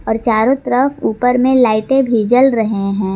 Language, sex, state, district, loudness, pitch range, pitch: Hindi, female, Jharkhand, Garhwa, -14 LUFS, 220-260 Hz, 245 Hz